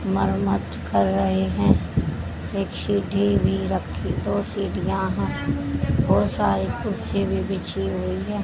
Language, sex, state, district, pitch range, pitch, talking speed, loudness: Hindi, female, Haryana, Jhajjar, 95-100 Hz, 95 Hz, 120 wpm, -23 LUFS